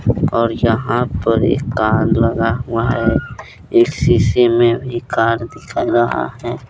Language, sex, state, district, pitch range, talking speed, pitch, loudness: Hindi, male, Jharkhand, Deoghar, 115-120 Hz, 145 wpm, 115 Hz, -16 LUFS